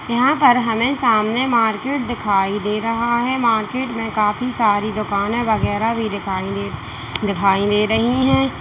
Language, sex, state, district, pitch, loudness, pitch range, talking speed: Hindi, female, Uttar Pradesh, Saharanpur, 220 Hz, -18 LUFS, 205-235 Hz, 155 wpm